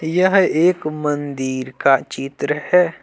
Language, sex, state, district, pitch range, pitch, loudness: Hindi, male, Jharkhand, Deoghar, 135-175 Hz, 150 Hz, -18 LUFS